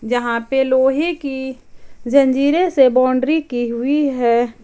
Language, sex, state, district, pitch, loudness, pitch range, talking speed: Hindi, female, Jharkhand, Ranchi, 265 Hz, -16 LUFS, 245-280 Hz, 130 wpm